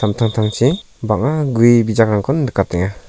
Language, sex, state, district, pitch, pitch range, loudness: Garo, male, Meghalaya, South Garo Hills, 115 Hz, 105-130 Hz, -16 LUFS